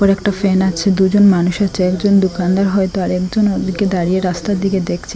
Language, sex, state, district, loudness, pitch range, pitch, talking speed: Bengali, female, Assam, Hailakandi, -15 LUFS, 185-200 Hz, 190 Hz, 175 wpm